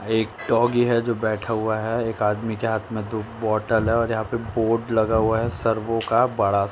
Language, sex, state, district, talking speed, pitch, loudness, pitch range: Hindi, male, Uttar Pradesh, Jalaun, 230 wpm, 110 Hz, -22 LUFS, 110-115 Hz